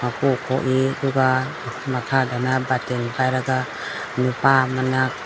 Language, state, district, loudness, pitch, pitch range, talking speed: Manipuri, Manipur, Imphal West, -21 LUFS, 130 Hz, 125-130 Hz, 80 wpm